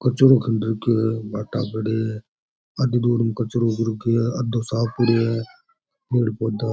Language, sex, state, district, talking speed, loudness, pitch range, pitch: Rajasthani, male, Rajasthan, Churu, 185 wpm, -21 LUFS, 110-120 Hz, 115 Hz